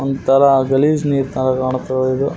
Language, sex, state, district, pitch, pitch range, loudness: Kannada, male, Karnataka, Raichur, 135 Hz, 130-140 Hz, -16 LUFS